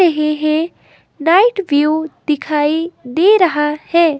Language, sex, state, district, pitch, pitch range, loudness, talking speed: Hindi, female, Himachal Pradesh, Shimla, 315 Hz, 300-340 Hz, -15 LUFS, 115 wpm